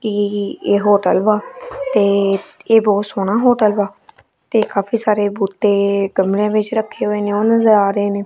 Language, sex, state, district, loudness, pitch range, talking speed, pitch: Punjabi, female, Punjab, Kapurthala, -16 LUFS, 200-220 Hz, 175 wpm, 205 Hz